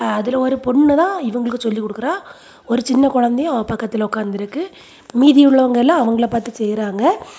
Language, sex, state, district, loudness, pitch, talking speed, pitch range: Tamil, female, Tamil Nadu, Kanyakumari, -16 LUFS, 245 Hz, 155 wpm, 225-275 Hz